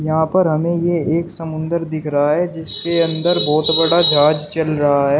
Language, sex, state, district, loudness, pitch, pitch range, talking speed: Hindi, male, Uttar Pradesh, Shamli, -16 LUFS, 160 Hz, 150-170 Hz, 195 wpm